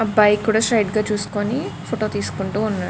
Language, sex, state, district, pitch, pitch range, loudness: Telugu, female, Andhra Pradesh, Krishna, 210 Hz, 205-220 Hz, -20 LUFS